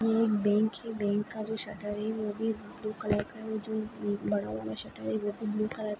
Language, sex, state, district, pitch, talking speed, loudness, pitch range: Hindi, female, Bihar, Saran, 215 Hz, 250 wpm, -32 LUFS, 205-220 Hz